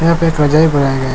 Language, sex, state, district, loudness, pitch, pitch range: Hindi, male, Chhattisgarh, Bilaspur, -12 LUFS, 150 Hz, 140-165 Hz